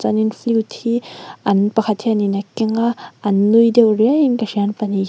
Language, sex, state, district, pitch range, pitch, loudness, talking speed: Mizo, female, Mizoram, Aizawl, 205-230 Hz, 220 Hz, -17 LUFS, 235 wpm